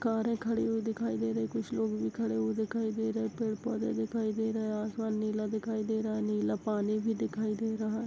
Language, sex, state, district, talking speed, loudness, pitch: Hindi, female, Chhattisgarh, Balrampur, 260 wpm, -33 LUFS, 220 Hz